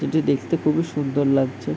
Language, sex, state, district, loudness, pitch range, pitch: Bengali, male, West Bengal, Paschim Medinipur, -21 LUFS, 135-155 Hz, 145 Hz